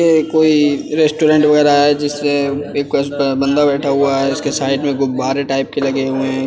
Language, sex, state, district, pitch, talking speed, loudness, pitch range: Hindi, male, Uttar Pradesh, Budaun, 145 Hz, 185 wpm, -15 LUFS, 135-145 Hz